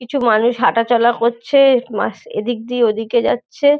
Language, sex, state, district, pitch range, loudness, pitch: Bengali, female, West Bengal, North 24 Parganas, 230-255 Hz, -16 LUFS, 240 Hz